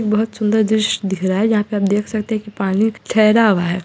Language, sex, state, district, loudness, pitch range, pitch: Hindi, female, Bihar, Muzaffarpur, -17 LUFS, 200-220 Hz, 215 Hz